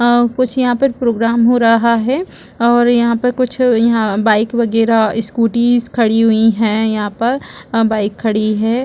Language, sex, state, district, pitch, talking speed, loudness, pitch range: Hindi, female, Chhattisgarh, Bastar, 230 Hz, 155 wpm, -14 LUFS, 220-240 Hz